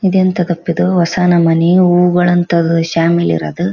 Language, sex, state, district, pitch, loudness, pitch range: Kannada, female, Karnataka, Bellary, 175 Hz, -12 LUFS, 170-180 Hz